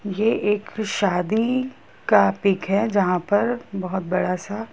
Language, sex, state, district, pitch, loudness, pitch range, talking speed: Hindi, female, Bihar, Gopalganj, 205 Hz, -22 LUFS, 190-220 Hz, 140 wpm